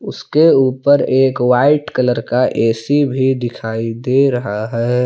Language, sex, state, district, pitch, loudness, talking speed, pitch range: Hindi, male, Jharkhand, Palamu, 125 Hz, -15 LUFS, 140 wpm, 115-135 Hz